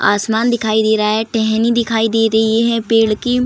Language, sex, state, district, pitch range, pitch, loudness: Hindi, female, Uttar Pradesh, Jalaun, 220-230 Hz, 225 Hz, -15 LUFS